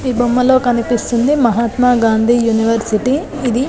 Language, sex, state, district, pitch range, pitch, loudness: Telugu, female, Telangana, Nalgonda, 230-250 Hz, 240 Hz, -14 LUFS